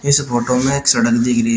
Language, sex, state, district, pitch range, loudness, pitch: Hindi, male, Uttar Pradesh, Shamli, 120-140 Hz, -15 LUFS, 120 Hz